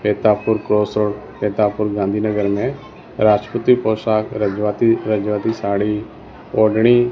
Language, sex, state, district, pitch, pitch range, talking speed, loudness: Hindi, male, Gujarat, Gandhinagar, 105 Hz, 105-110 Hz, 95 wpm, -18 LUFS